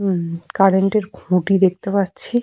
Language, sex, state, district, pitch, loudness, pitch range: Bengali, female, Jharkhand, Sahebganj, 195 Hz, -18 LUFS, 180-200 Hz